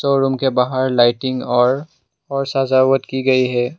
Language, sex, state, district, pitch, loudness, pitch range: Hindi, male, Assam, Sonitpur, 130 Hz, -17 LUFS, 125-135 Hz